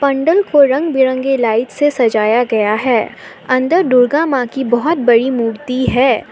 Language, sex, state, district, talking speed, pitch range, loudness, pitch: Hindi, female, Assam, Sonitpur, 160 wpm, 235-280 Hz, -13 LUFS, 260 Hz